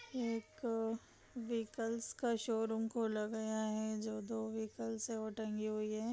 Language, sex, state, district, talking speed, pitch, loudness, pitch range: Hindi, female, Chhattisgarh, Kabirdham, 145 wpm, 225 Hz, -40 LUFS, 220-230 Hz